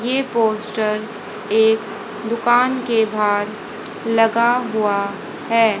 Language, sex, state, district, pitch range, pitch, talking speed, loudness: Hindi, female, Haryana, Charkhi Dadri, 215-230 Hz, 220 Hz, 95 wpm, -18 LUFS